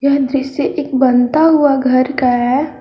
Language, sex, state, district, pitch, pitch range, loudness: Hindi, female, Jharkhand, Garhwa, 270 Hz, 255-285 Hz, -13 LUFS